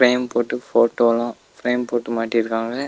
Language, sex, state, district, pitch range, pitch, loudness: Tamil, male, Tamil Nadu, Nilgiris, 115-125 Hz, 120 Hz, -20 LUFS